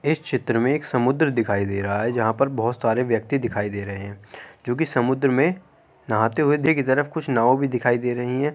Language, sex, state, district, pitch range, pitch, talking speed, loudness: Hindi, male, Uttar Pradesh, Jyotiba Phule Nagar, 115-140 Hz, 125 Hz, 230 wpm, -22 LUFS